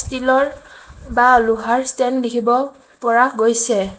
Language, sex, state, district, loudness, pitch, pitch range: Assamese, female, Assam, Sonitpur, -16 LUFS, 245 Hz, 235-260 Hz